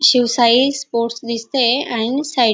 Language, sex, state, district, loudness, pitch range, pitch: Marathi, female, Maharashtra, Dhule, -16 LUFS, 235-270 Hz, 240 Hz